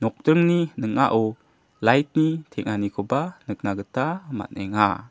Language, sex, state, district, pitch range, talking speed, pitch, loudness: Garo, male, Meghalaya, South Garo Hills, 105-155 Hz, 80 wpm, 130 Hz, -23 LUFS